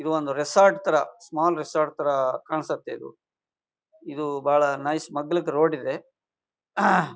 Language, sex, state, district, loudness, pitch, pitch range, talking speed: Kannada, male, Karnataka, Bijapur, -24 LUFS, 155 Hz, 145-170 Hz, 125 wpm